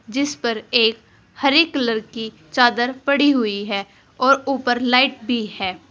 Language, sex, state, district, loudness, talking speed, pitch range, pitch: Hindi, female, Uttar Pradesh, Saharanpur, -19 LUFS, 150 wpm, 225-270 Hz, 245 Hz